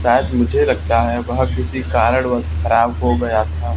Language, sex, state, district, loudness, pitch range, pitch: Hindi, male, Haryana, Charkhi Dadri, -17 LUFS, 80-120 Hz, 110 Hz